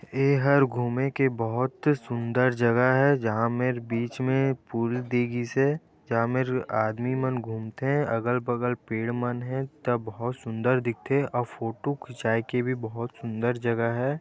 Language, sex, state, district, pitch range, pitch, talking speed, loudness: Chhattisgarhi, male, Chhattisgarh, Raigarh, 115-130 Hz, 120 Hz, 155 wpm, -27 LUFS